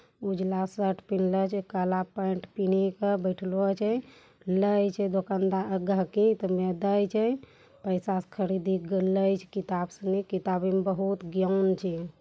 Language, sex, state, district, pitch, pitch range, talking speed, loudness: Angika, female, Bihar, Bhagalpur, 190 Hz, 185-200 Hz, 80 wpm, -28 LUFS